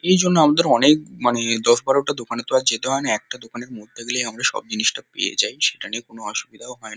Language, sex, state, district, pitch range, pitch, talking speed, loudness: Bengali, male, West Bengal, Kolkata, 115-135 Hz, 120 Hz, 225 wpm, -20 LUFS